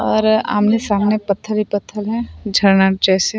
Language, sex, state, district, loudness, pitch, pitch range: Chhattisgarhi, female, Chhattisgarh, Sarguja, -16 LUFS, 210 Hz, 200-215 Hz